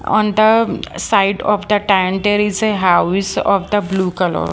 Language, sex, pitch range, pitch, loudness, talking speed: English, female, 190-210 Hz, 200 Hz, -15 LUFS, 170 wpm